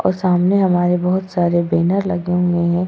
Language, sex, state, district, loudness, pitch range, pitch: Hindi, female, Goa, North and South Goa, -17 LUFS, 175-185 Hz, 180 Hz